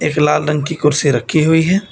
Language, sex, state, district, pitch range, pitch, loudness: Hindi, male, Uttar Pradesh, Lucknow, 150-160 Hz, 150 Hz, -14 LUFS